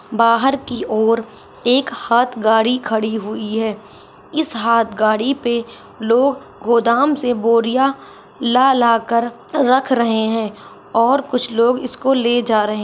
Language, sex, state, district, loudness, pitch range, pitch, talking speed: Hindi, female, Rajasthan, Churu, -17 LUFS, 225-255 Hz, 235 Hz, 145 wpm